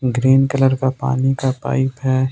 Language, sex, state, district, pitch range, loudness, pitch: Hindi, male, Jharkhand, Ranchi, 130-135 Hz, -17 LUFS, 130 Hz